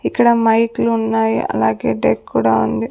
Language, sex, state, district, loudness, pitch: Telugu, female, Andhra Pradesh, Sri Satya Sai, -16 LUFS, 225 Hz